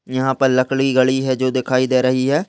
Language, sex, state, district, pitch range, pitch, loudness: Hindi, male, Rajasthan, Churu, 130-135 Hz, 130 Hz, -17 LUFS